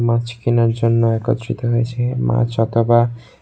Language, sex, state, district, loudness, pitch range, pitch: Bengali, male, Tripura, West Tripura, -18 LUFS, 115-120 Hz, 115 Hz